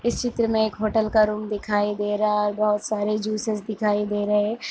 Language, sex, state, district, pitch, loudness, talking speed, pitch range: Hindi, female, Jharkhand, Jamtara, 215 Hz, -23 LUFS, 240 wpm, 210-215 Hz